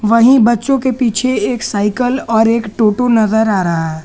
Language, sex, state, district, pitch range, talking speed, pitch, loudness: Hindi, male, Jharkhand, Garhwa, 215-245 Hz, 190 wpm, 230 Hz, -13 LUFS